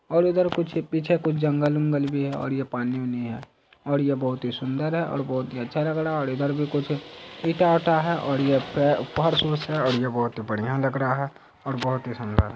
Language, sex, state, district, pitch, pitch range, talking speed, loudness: Hindi, male, Bihar, Saharsa, 140 Hz, 130-155 Hz, 225 wpm, -25 LUFS